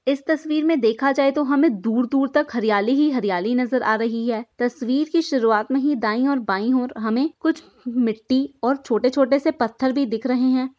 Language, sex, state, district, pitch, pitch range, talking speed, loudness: Hindi, female, Uttar Pradesh, Hamirpur, 255 Hz, 230-280 Hz, 210 wpm, -21 LUFS